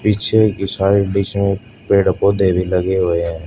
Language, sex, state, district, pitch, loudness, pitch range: Hindi, female, Haryana, Charkhi Dadri, 100 Hz, -16 LUFS, 95-100 Hz